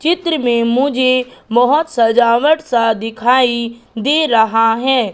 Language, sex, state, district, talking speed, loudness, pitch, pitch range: Hindi, female, Madhya Pradesh, Katni, 115 wpm, -14 LUFS, 245 Hz, 230-265 Hz